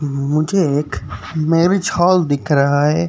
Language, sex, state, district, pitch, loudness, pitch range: Hindi, male, Uttar Pradesh, Jyotiba Phule Nagar, 150 Hz, -16 LUFS, 140-170 Hz